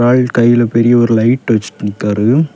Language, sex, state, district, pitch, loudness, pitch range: Tamil, male, Tamil Nadu, Kanyakumari, 120 Hz, -12 LUFS, 110-120 Hz